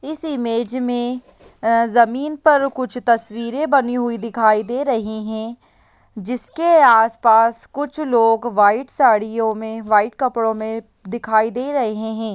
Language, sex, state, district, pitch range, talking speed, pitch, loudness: Hindi, female, Bihar, Jahanabad, 220-255 Hz, 135 wpm, 235 Hz, -18 LUFS